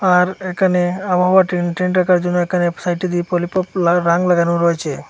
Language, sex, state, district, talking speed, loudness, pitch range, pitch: Bengali, male, Assam, Hailakandi, 105 wpm, -16 LUFS, 175-185 Hz, 180 Hz